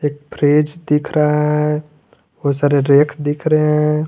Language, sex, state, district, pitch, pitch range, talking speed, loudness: Hindi, male, Jharkhand, Garhwa, 150 Hz, 145-150 Hz, 145 wpm, -16 LUFS